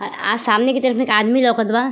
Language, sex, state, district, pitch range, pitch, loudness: Bhojpuri, female, Uttar Pradesh, Ghazipur, 225-255 Hz, 240 Hz, -17 LUFS